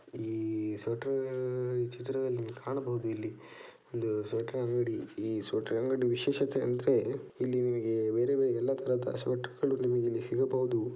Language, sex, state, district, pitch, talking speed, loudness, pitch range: Kannada, male, Karnataka, Dakshina Kannada, 125 Hz, 130 wpm, -33 LUFS, 115-130 Hz